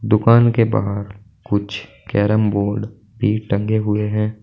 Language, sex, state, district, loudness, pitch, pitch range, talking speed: Hindi, male, Uttar Pradesh, Saharanpur, -18 LUFS, 105 Hz, 100-110 Hz, 135 wpm